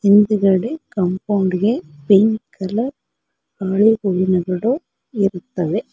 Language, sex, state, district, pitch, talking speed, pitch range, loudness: Kannada, female, Karnataka, Koppal, 200 Hz, 60 wpm, 185-220 Hz, -18 LUFS